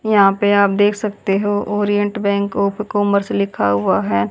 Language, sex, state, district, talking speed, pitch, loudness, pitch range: Hindi, female, Haryana, Jhajjar, 180 wpm, 200 Hz, -17 LUFS, 195-205 Hz